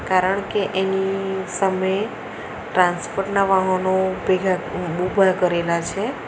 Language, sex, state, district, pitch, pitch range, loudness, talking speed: Gujarati, female, Gujarat, Valsad, 190 Hz, 185-195 Hz, -21 LUFS, 95 wpm